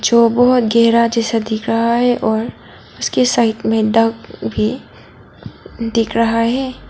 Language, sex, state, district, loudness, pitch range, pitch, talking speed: Hindi, female, Arunachal Pradesh, Papum Pare, -15 LUFS, 225-240 Hz, 230 Hz, 140 wpm